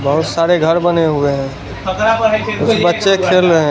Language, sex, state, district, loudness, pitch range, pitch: Hindi, male, Gujarat, Valsad, -14 LUFS, 160-195 Hz, 175 Hz